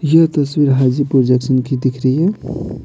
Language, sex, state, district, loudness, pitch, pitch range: Hindi, male, Bihar, Patna, -15 LUFS, 135 Hz, 130-150 Hz